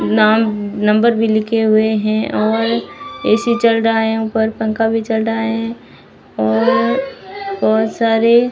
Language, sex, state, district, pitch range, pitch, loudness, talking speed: Hindi, female, Rajasthan, Barmer, 220-230 Hz, 225 Hz, -15 LUFS, 140 wpm